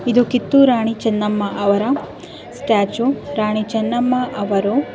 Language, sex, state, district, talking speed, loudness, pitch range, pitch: Kannada, female, Karnataka, Dharwad, 110 wpm, -17 LUFS, 210-250 Hz, 225 Hz